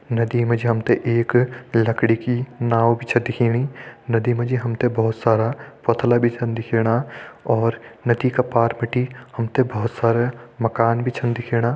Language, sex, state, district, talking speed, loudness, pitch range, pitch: Hindi, male, Uttarakhand, Tehri Garhwal, 185 wpm, -20 LUFS, 115-120 Hz, 120 Hz